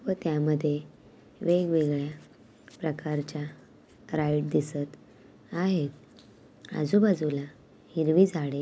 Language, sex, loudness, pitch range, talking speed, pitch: Marathi, female, -28 LUFS, 145-170 Hz, 70 wpm, 150 Hz